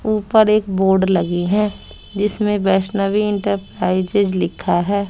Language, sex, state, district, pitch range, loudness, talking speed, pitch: Hindi, female, Bihar, West Champaran, 190-210 Hz, -17 LUFS, 115 wpm, 200 Hz